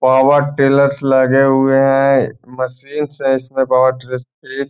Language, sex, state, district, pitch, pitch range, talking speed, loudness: Hindi, male, Bihar, Gaya, 135 Hz, 130-140 Hz, 115 wpm, -14 LUFS